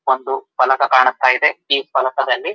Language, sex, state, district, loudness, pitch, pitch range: Kannada, male, Karnataka, Dharwad, -16 LUFS, 130 Hz, 130-135 Hz